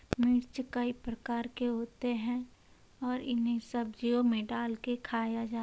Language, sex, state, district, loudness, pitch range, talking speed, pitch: Hindi, female, Uttar Pradesh, Hamirpur, -34 LUFS, 235-245 Hz, 160 wpm, 240 Hz